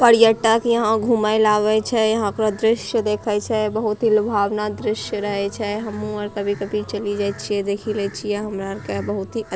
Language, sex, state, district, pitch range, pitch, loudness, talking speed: Angika, female, Bihar, Bhagalpur, 205-220 Hz, 210 Hz, -20 LUFS, 200 wpm